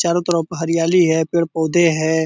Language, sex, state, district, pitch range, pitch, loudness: Hindi, male, Bihar, Purnia, 160-170 Hz, 165 Hz, -17 LUFS